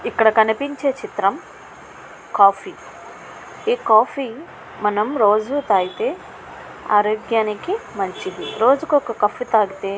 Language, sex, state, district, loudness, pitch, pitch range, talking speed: Telugu, female, Andhra Pradesh, Krishna, -19 LUFS, 220 Hz, 210-270 Hz, 95 wpm